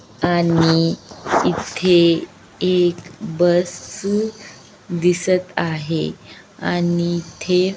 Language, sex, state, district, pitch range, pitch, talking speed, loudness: Marathi, female, Maharashtra, Aurangabad, 165-185 Hz, 175 Hz, 70 wpm, -19 LUFS